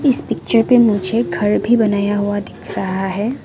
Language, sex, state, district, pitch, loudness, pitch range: Hindi, female, Arunachal Pradesh, Lower Dibang Valley, 210 Hz, -16 LUFS, 205-235 Hz